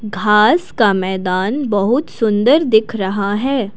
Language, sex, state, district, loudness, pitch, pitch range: Hindi, female, Assam, Kamrup Metropolitan, -15 LUFS, 215 Hz, 200-250 Hz